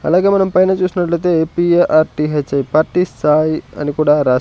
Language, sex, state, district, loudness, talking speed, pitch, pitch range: Telugu, male, Andhra Pradesh, Sri Satya Sai, -14 LUFS, 135 wpm, 160 Hz, 150-180 Hz